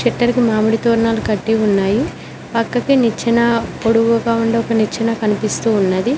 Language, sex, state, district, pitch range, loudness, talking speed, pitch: Telugu, female, Telangana, Mahabubabad, 215-235 Hz, -16 LUFS, 125 wpm, 230 Hz